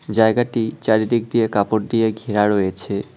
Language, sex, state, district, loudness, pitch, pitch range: Bengali, male, West Bengal, Cooch Behar, -19 LUFS, 110 Hz, 105-115 Hz